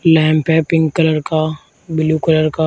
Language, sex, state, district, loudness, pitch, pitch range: Hindi, male, Uttar Pradesh, Shamli, -15 LUFS, 160 Hz, 155-160 Hz